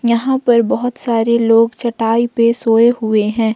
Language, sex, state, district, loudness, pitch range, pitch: Hindi, female, Jharkhand, Ranchi, -14 LUFS, 225-240 Hz, 230 Hz